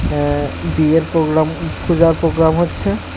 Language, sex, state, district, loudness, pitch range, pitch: Bengali, male, Tripura, West Tripura, -16 LUFS, 100-165 Hz, 160 Hz